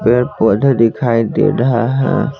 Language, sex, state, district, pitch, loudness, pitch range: Hindi, male, Bihar, Patna, 125 Hz, -14 LUFS, 115-135 Hz